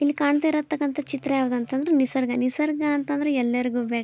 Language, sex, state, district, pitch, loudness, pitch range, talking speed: Kannada, female, Karnataka, Belgaum, 285 Hz, -24 LUFS, 250-295 Hz, 180 wpm